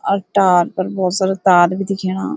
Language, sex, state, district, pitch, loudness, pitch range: Garhwali, female, Uttarakhand, Uttarkashi, 190 Hz, -16 LUFS, 185-195 Hz